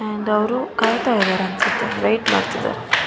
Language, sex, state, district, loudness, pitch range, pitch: Kannada, female, Karnataka, Shimoga, -19 LUFS, 210-230 Hz, 215 Hz